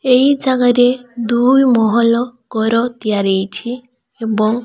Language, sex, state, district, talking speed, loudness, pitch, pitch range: Odia, male, Odisha, Malkangiri, 115 wpm, -14 LUFS, 240 Hz, 225-250 Hz